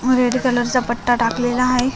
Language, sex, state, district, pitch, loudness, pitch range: Marathi, female, Maharashtra, Solapur, 250 Hz, -18 LUFS, 245-255 Hz